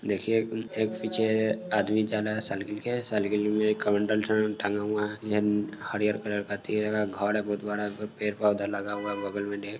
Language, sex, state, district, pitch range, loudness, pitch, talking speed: Hindi, male, Bihar, Sitamarhi, 105-110 Hz, -28 LUFS, 105 Hz, 190 wpm